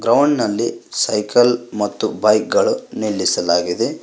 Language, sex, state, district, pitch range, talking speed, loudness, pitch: Kannada, male, Karnataka, Koppal, 90-120 Hz, 105 wpm, -17 LUFS, 105 Hz